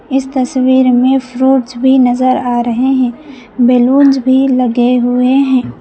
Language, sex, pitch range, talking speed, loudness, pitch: Hindi, female, 245-265 Hz, 145 wpm, -11 LUFS, 255 Hz